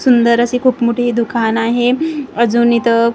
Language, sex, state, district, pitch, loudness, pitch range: Marathi, female, Maharashtra, Gondia, 235 Hz, -14 LUFS, 235-250 Hz